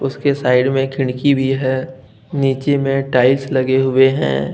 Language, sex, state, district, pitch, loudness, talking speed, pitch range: Hindi, male, Jharkhand, Deoghar, 135 Hz, -16 LUFS, 170 wpm, 130-135 Hz